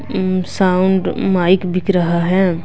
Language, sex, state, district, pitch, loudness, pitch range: Hindi, female, Bihar, West Champaran, 185 Hz, -16 LUFS, 180-190 Hz